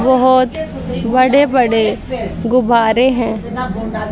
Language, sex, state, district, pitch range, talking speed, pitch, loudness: Hindi, female, Haryana, Jhajjar, 225-255 Hz, 75 wpm, 245 Hz, -14 LUFS